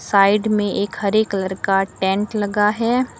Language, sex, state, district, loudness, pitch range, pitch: Hindi, female, Uttar Pradesh, Lucknow, -19 LUFS, 195-215 Hz, 205 Hz